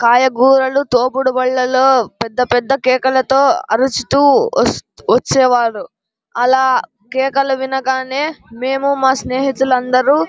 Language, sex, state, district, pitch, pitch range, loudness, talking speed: Telugu, male, Andhra Pradesh, Anantapur, 260 Hz, 250-270 Hz, -14 LUFS, 85 wpm